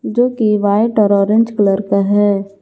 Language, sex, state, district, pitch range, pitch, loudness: Hindi, female, Jharkhand, Garhwa, 200-220 Hz, 205 Hz, -14 LUFS